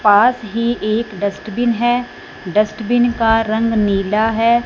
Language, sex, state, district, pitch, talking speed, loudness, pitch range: Hindi, female, Punjab, Fazilka, 225 Hz, 130 wpm, -16 LUFS, 210-240 Hz